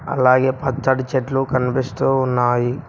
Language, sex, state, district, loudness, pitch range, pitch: Telugu, male, Telangana, Mahabubabad, -18 LUFS, 125-135 Hz, 130 Hz